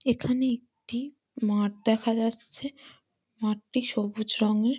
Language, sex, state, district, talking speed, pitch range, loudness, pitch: Bengali, female, West Bengal, Malda, 115 wpm, 215-255 Hz, -28 LUFS, 230 Hz